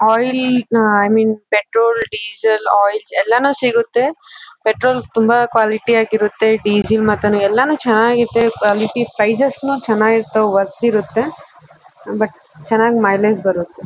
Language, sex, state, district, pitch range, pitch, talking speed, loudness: Kannada, female, Karnataka, Bellary, 210-235 Hz, 220 Hz, 120 wpm, -15 LUFS